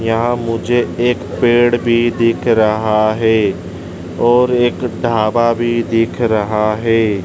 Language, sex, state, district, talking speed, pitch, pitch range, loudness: Hindi, male, Madhya Pradesh, Dhar, 125 wpm, 115 Hz, 110-120 Hz, -14 LUFS